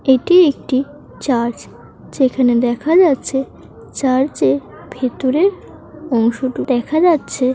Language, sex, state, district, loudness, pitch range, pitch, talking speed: Bengali, female, West Bengal, Paschim Medinipur, -16 LUFS, 250-300 Hz, 265 Hz, 95 wpm